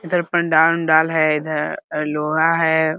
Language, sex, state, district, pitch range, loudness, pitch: Hindi, male, Bihar, Muzaffarpur, 155-165 Hz, -18 LUFS, 160 Hz